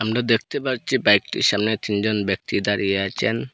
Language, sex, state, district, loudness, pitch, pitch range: Bengali, male, Assam, Hailakandi, -21 LUFS, 105 Hz, 100-110 Hz